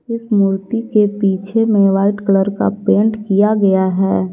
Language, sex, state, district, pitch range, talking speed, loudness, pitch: Hindi, female, Jharkhand, Garhwa, 195-215 Hz, 165 wpm, -15 LUFS, 200 Hz